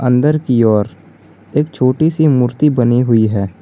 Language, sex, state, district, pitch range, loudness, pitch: Hindi, male, Jharkhand, Garhwa, 115-150 Hz, -13 LUFS, 125 Hz